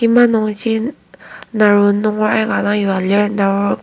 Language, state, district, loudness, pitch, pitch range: Ao, Nagaland, Kohima, -15 LUFS, 210 Hz, 205-220 Hz